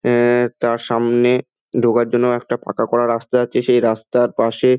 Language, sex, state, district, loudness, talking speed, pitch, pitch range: Bengali, male, West Bengal, Dakshin Dinajpur, -17 LUFS, 175 wpm, 120 Hz, 115-120 Hz